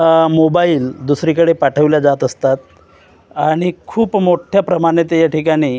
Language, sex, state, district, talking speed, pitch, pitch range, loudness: Marathi, male, Maharashtra, Gondia, 115 wpm, 160 Hz, 145-170 Hz, -14 LUFS